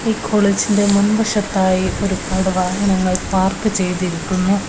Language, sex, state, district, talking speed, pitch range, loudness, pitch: Malayalam, female, Kerala, Kozhikode, 90 wpm, 185-205 Hz, -17 LUFS, 195 Hz